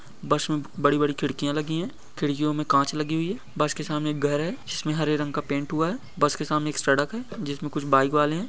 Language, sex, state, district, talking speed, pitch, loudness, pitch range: Hindi, male, Bihar, Begusarai, 245 wpm, 150 Hz, -26 LUFS, 145-155 Hz